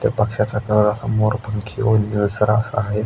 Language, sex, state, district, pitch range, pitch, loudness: Marathi, male, Maharashtra, Aurangabad, 105-110 Hz, 105 Hz, -19 LUFS